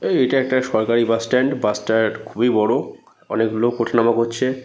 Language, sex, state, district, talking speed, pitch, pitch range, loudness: Bengali, male, West Bengal, North 24 Parganas, 205 wpm, 115 Hz, 110-130 Hz, -19 LUFS